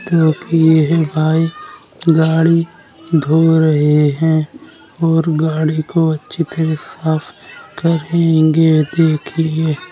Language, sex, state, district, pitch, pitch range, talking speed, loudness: Bundeli, male, Uttar Pradesh, Jalaun, 160 Hz, 155-165 Hz, 90 wpm, -14 LUFS